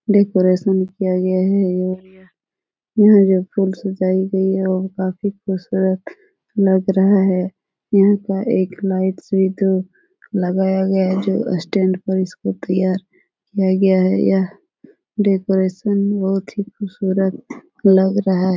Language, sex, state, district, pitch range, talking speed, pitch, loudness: Hindi, female, Bihar, Supaul, 185-195 Hz, 135 wpm, 190 Hz, -18 LUFS